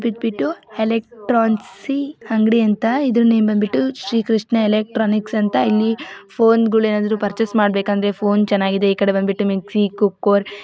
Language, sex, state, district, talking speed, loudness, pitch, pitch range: Kannada, female, Karnataka, Dakshina Kannada, 125 wpm, -18 LUFS, 215 Hz, 205-230 Hz